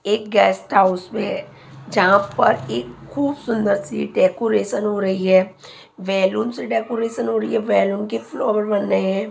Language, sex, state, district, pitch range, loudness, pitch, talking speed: Hindi, female, Punjab, Pathankot, 185-225 Hz, -19 LUFS, 200 Hz, 160 wpm